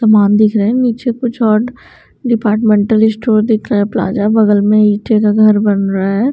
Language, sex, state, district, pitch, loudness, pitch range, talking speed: Hindi, female, Bihar, Patna, 215 Hz, -12 LUFS, 210-225 Hz, 200 wpm